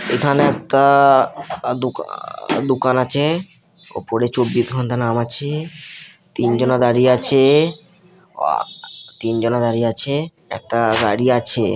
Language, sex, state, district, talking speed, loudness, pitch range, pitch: Bengali, male, West Bengal, Kolkata, 95 wpm, -17 LUFS, 120-150 Hz, 130 Hz